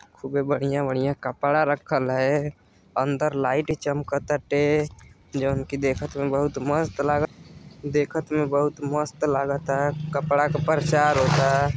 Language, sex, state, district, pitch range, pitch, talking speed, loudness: Bhojpuri, male, Uttar Pradesh, Deoria, 140-150 Hz, 145 Hz, 125 wpm, -24 LUFS